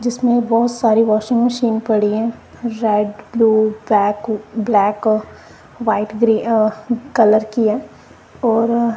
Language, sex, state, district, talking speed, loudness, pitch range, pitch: Hindi, female, Punjab, Kapurthala, 120 wpm, -17 LUFS, 215-235 Hz, 225 Hz